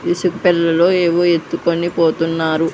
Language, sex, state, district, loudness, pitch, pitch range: Telugu, female, Andhra Pradesh, Sri Satya Sai, -16 LUFS, 170 Hz, 165-175 Hz